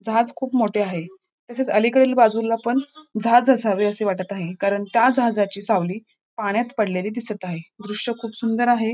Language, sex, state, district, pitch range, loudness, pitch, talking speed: Marathi, female, Maharashtra, Pune, 205-240 Hz, -21 LUFS, 225 Hz, 170 wpm